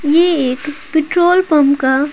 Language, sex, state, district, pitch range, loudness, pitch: Hindi, female, Bihar, Patna, 280-330 Hz, -13 LUFS, 300 Hz